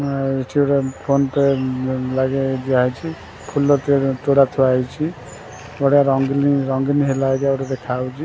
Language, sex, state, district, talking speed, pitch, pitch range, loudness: Odia, male, Odisha, Khordha, 115 wpm, 135 Hz, 130-140 Hz, -18 LUFS